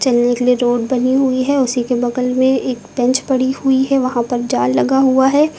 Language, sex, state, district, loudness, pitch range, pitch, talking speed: Hindi, female, Uttar Pradesh, Lucknow, -15 LUFS, 245-265 Hz, 255 Hz, 225 wpm